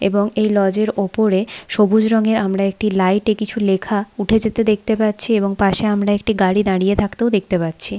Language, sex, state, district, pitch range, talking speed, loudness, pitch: Bengali, female, West Bengal, Paschim Medinipur, 195-220 Hz, 195 wpm, -17 LUFS, 205 Hz